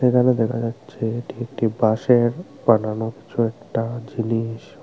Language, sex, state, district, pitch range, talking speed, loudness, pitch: Bengali, male, Tripura, Unakoti, 115-125 Hz, 125 wpm, -22 LUFS, 115 Hz